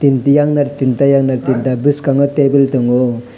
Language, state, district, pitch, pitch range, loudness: Kokborok, Tripura, West Tripura, 135 Hz, 130-140 Hz, -13 LUFS